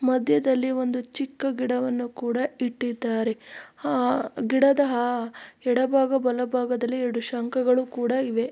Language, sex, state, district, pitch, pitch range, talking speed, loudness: Kannada, female, Karnataka, Mysore, 250 Hz, 245-260 Hz, 100 wpm, -25 LUFS